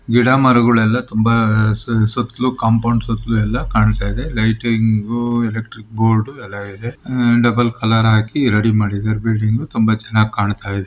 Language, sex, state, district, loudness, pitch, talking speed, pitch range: Kannada, male, Karnataka, Mysore, -16 LUFS, 115 Hz, 140 wpm, 110-120 Hz